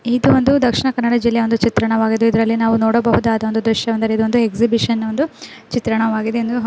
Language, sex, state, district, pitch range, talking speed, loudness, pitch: Kannada, female, Karnataka, Dakshina Kannada, 225-235 Hz, 155 wpm, -16 LUFS, 230 Hz